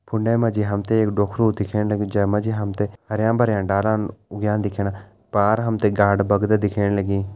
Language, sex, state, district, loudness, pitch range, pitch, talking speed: Hindi, male, Uttarakhand, Tehri Garhwal, -21 LUFS, 100-110 Hz, 105 Hz, 220 wpm